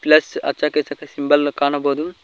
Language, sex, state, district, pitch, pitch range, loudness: Kannada, male, Karnataka, Koppal, 145 Hz, 145-150 Hz, -19 LUFS